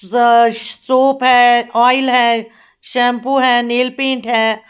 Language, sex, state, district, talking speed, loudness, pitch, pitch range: Hindi, female, Uttar Pradesh, Lalitpur, 115 wpm, -13 LUFS, 245 Hz, 235-255 Hz